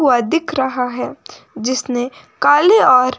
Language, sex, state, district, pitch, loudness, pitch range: Hindi, female, Himachal Pradesh, Shimla, 255 Hz, -15 LUFS, 250-295 Hz